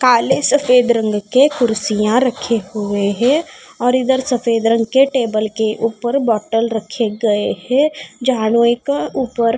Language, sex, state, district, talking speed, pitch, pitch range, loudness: Hindi, female, Haryana, Charkhi Dadri, 155 wpm, 235 Hz, 220-260 Hz, -16 LUFS